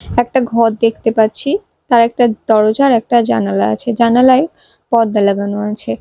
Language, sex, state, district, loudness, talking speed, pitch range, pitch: Bengali, female, Odisha, Malkangiri, -13 LUFS, 150 wpm, 215-240 Hz, 230 Hz